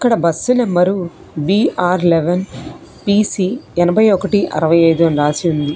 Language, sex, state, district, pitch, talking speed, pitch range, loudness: Telugu, female, Telangana, Hyderabad, 175 Hz, 135 wpm, 165-195 Hz, -15 LUFS